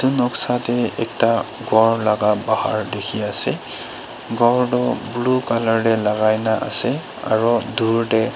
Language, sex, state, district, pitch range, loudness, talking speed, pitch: Nagamese, female, Nagaland, Dimapur, 110-120 Hz, -18 LUFS, 145 wpm, 115 Hz